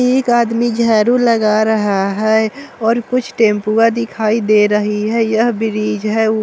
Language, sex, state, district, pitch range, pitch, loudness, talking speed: Hindi, male, Bihar, Vaishali, 215-235 Hz, 220 Hz, -14 LUFS, 150 wpm